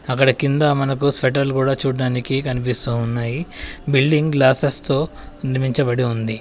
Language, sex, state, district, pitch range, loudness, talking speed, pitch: Telugu, male, Telangana, Adilabad, 125-140 Hz, -18 LUFS, 110 wpm, 135 Hz